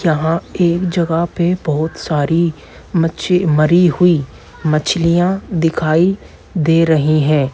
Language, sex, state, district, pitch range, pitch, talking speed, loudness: Hindi, male, Bihar, Purnia, 155-175 Hz, 165 Hz, 110 wpm, -15 LUFS